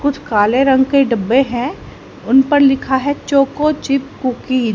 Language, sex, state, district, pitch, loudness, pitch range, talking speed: Hindi, female, Haryana, Jhajjar, 270 Hz, -15 LUFS, 255-280 Hz, 175 wpm